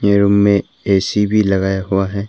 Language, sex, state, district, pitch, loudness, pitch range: Hindi, male, Arunachal Pradesh, Papum Pare, 100 Hz, -15 LUFS, 95-100 Hz